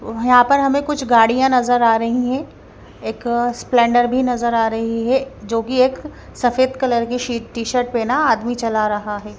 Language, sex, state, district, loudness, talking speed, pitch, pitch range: Hindi, female, Bihar, Patna, -17 LUFS, 190 wpm, 240 Hz, 230-255 Hz